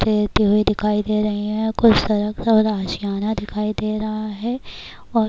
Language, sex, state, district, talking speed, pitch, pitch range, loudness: Urdu, female, Bihar, Kishanganj, 170 wpm, 215 Hz, 210-215 Hz, -20 LUFS